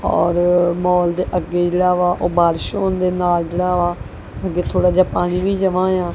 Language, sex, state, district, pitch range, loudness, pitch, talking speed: Punjabi, male, Punjab, Kapurthala, 175-180 Hz, -17 LUFS, 180 Hz, 195 wpm